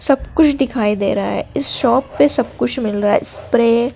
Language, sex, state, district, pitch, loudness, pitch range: Hindi, female, Madhya Pradesh, Dhar, 245 Hz, -16 LUFS, 215-275 Hz